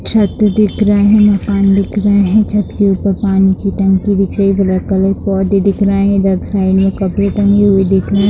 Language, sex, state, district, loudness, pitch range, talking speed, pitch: Hindi, female, Bihar, Gopalganj, -12 LUFS, 195-205 Hz, 215 wpm, 200 Hz